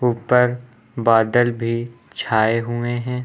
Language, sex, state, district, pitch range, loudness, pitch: Hindi, male, Uttar Pradesh, Lucknow, 115-120 Hz, -19 LUFS, 120 Hz